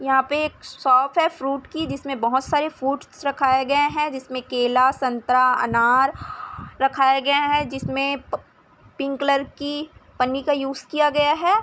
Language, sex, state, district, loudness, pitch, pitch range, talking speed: Hindi, female, Chhattisgarh, Bilaspur, -21 LUFS, 275 Hz, 260-290 Hz, 165 wpm